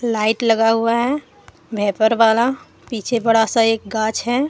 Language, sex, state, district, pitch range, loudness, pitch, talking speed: Hindi, female, Jharkhand, Deoghar, 220-235 Hz, -17 LUFS, 225 Hz, 160 wpm